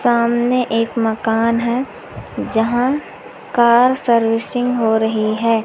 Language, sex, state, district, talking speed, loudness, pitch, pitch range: Hindi, female, Madhya Pradesh, Umaria, 105 wpm, -16 LUFS, 235 Hz, 225-245 Hz